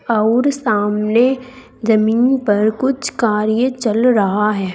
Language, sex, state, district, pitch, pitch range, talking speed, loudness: Hindi, female, Uttar Pradesh, Saharanpur, 225 Hz, 215-255 Hz, 115 wpm, -16 LUFS